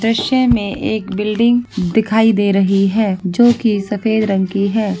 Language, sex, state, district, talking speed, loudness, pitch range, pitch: Hindi, female, Bihar, Saharsa, 170 wpm, -15 LUFS, 200-225 Hz, 215 Hz